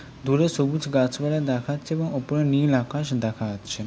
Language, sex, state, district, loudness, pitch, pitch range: Bengali, male, West Bengal, Kolkata, -24 LUFS, 140 Hz, 125-145 Hz